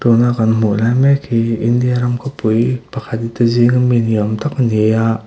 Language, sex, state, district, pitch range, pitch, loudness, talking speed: Mizo, male, Mizoram, Aizawl, 115-125 Hz, 120 Hz, -15 LUFS, 225 wpm